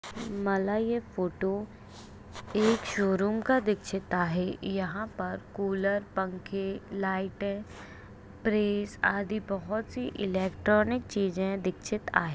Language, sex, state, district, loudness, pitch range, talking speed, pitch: Hindi, female, Maharashtra, Aurangabad, -30 LUFS, 185-210 Hz, 100 wpm, 195 Hz